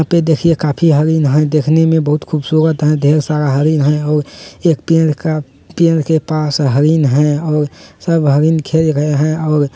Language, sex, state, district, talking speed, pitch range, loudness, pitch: Hindi, male, Bihar, Jamui, 190 wpm, 150-160 Hz, -13 LUFS, 155 Hz